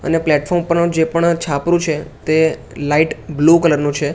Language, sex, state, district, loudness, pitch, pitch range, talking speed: Gujarati, male, Gujarat, Gandhinagar, -16 LUFS, 160 Hz, 150-170 Hz, 185 wpm